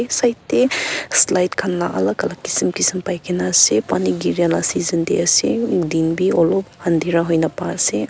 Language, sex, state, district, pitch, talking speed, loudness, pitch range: Nagamese, female, Nagaland, Kohima, 175 Hz, 170 wpm, -17 LUFS, 160-190 Hz